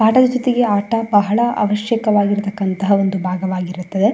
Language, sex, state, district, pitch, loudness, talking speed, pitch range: Kannada, female, Karnataka, Shimoga, 205 Hz, -17 LUFS, 100 wpm, 195-230 Hz